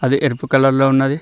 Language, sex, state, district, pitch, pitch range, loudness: Telugu, male, Telangana, Mahabubabad, 135 Hz, 135-140 Hz, -15 LUFS